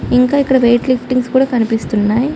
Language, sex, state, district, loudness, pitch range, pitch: Telugu, female, Andhra Pradesh, Chittoor, -13 LUFS, 235-260 Hz, 250 Hz